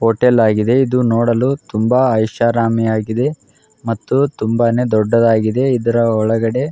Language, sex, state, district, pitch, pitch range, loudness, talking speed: Kannada, male, Karnataka, Raichur, 115 Hz, 110-125 Hz, -15 LUFS, 115 wpm